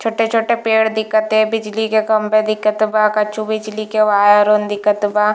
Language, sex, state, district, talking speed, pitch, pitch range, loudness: Hindi, female, Chhattisgarh, Bilaspur, 190 wpm, 215 Hz, 210-220 Hz, -15 LUFS